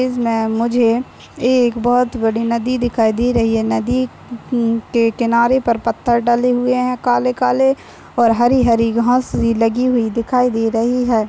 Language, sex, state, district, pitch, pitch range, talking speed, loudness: Hindi, female, Maharashtra, Nagpur, 240 Hz, 230-250 Hz, 170 wpm, -16 LUFS